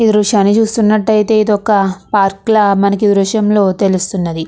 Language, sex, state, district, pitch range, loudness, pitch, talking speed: Telugu, female, Andhra Pradesh, Krishna, 195-215 Hz, -12 LUFS, 205 Hz, 135 wpm